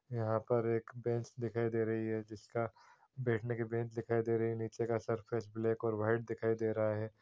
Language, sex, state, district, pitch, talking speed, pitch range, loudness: Hindi, male, Bihar, East Champaran, 115 Hz, 215 wpm, 110-115 Hz, -37 LUFS